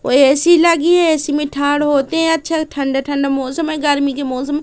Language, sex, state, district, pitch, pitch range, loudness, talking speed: Hindi, female, Madhya Pradesh, Katni, 290 Hz, 275-325 Hz, -15 LUFS, 205 wpm